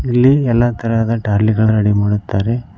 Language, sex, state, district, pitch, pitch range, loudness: Kannada, male, Karnataka, Koppal, 115 Hz, 105-120 Hz, -15 LUFS